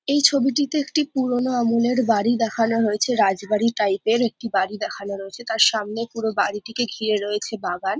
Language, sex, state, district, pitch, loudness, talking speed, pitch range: Bengali, female, West Bengal, Jhargram, 225 Hz, -21 LUFS, 155 wpm, 210-245 Hz